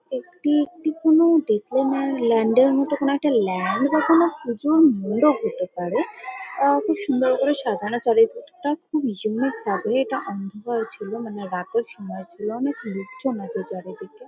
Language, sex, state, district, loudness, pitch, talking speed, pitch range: Bengali, female, West Bengal, Jhargram, -22 LUFS, 260 Hz, 165 wpm, 215-295 Hz